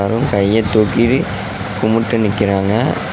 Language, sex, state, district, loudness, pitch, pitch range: Tamil, male, Tamil Nadu, Namakkal, -15 LUFS, 110 Hz, 100-115 Hz